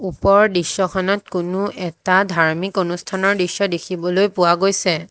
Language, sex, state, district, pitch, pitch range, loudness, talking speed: Assamese, female, Assam, Hailakandi, 185 Hz, 175-195 Hz, -18 LUFS, 115 wpm